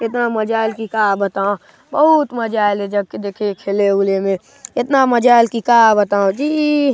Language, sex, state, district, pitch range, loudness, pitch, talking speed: Chhattisgarhi, male, Chhattisgarh, Sarguja, 200-245 Hz, -16 LUFS, 220 Hz, 200 wpm